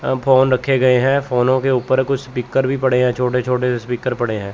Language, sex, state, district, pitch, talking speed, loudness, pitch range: Hindi, male, Chandigarh, Chandigarh, 130 Hz, 240 wpm, -17 LUFS, 125-130 Hz